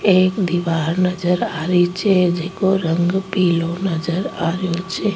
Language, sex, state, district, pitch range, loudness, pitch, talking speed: Rajasthani, female, Rajasthan, Nagaur, 170-190 Hz, -18 LUFS, 180 Hz, 150 wpm